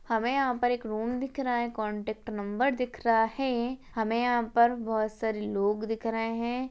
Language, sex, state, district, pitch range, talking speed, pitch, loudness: Hindi, female, Rajasthan, Churu, 220-245 Hz, 195 wpm, 230 Hz, -29 LUFS